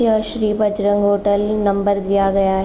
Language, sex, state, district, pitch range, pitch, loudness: Hindi, female, Uttar Pradesh, Jalaun, 200-210 Hz, 205 Hz, -17 LUFS